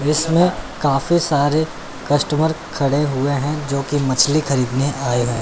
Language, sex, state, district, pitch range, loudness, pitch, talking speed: Hindi, male, Chandigarh, Chandigarh, 140-155 Hz, -18 LUFS, 145 Hz, 145 wpm